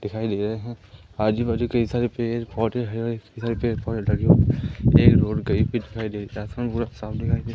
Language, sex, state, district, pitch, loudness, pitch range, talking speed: Hindi, male, Madhya Pradesh, Katni, 115 Hz, -23 LUFS, 110-115 Hz, 175 wpm